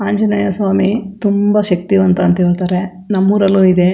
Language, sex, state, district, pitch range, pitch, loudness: Kannada, female, Karnataka, Chamarajanagar, 180-205 Hz, 195 Hz, -13 LUFS